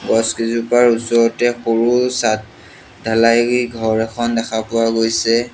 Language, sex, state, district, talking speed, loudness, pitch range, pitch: Assamese, male, Assam, Sonitpur, 120 wpm, -16 LUFS, 115-120 Hz, 115 Hz